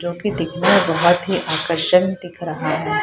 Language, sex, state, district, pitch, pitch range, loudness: Hindi, female, Bihar, Purnia, 175 Hz, 165-185 Hz, -18 LUFS